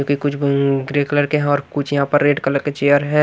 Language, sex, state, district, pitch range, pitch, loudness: Hindi, male, Maharashtra, Washim, 140-145 Hz, 145 Hz, -17 LUFS